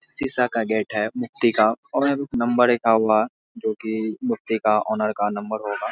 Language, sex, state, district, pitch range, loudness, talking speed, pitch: Hindi, male, Bihar, Darbhanga, 110-125 Hz, -21 LUFS, 225 wpm, 110 Hz